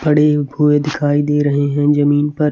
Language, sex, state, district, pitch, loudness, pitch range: Hindi, male, Chhattisgarh, Raipur, 145 Hz, -15 LUFS, 145-150 Hz